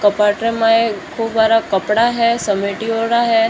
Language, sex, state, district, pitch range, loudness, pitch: Marwari, female, Rajasthan, Churu, 210-230 Hz, -16 LUFS, 225 Hz